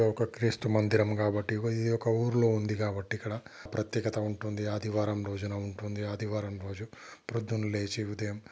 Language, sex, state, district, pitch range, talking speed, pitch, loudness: Telugu, male, Telangana, Nalgonda, 105-110 Hz, 150 wpm, 105 Hz, -32 LUFS